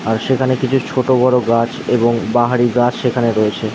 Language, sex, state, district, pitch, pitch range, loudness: Bengali, male, West Bengal, Dakshin Dinajpur, 120 Hz, 115-130 Hz, -15 LUFS